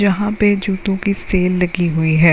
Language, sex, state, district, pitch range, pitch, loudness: Hindi, female, Uttarakhand, Uttarkashi, 175-200 Hz, 190 Hz, -17 LUFS